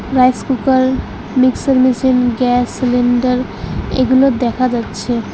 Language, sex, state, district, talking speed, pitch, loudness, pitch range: Bengali, female, West Bengal, Alipurduar, 100 wpm, 255 Hz, -14 LUFS, 245-260 Hz